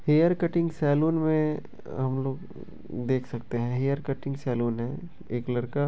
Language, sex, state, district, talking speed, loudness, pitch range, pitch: Maithili, male, Bihar, Begusarai, 155 wpm, -28 LUFS, 125-155 Hz, 135 Hz